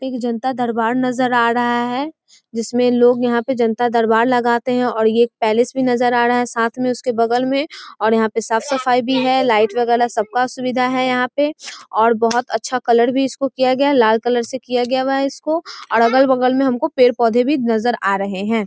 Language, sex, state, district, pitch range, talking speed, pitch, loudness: Hindi, female, Bihar, East Champaran, 230-255 Hz, 225 wpm, 245 Hz, -17 LUFS